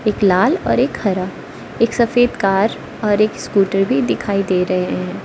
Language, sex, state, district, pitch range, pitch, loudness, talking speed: Hindi, female, Arunachal Pradesh, Lower Dibang Valley, 190-230 Hz, 200 Hz, -17 LUFS, 185 wpm